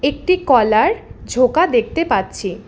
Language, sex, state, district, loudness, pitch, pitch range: Bengali, female, West Bengal, Alipurduar, -16 LUFS, 255 Hz, 220-330 Hz